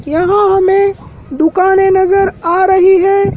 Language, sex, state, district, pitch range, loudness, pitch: Hindi, male, Madhya Pradesh, Dhar, 370-390 Hz, -10 LUFS, 380 Hz